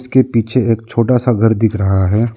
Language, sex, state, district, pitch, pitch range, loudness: Hindi, male, Arunachal Pradesh, Lower Dibang Valley, 115 Hz, 110-125 Hz, -14 LUFS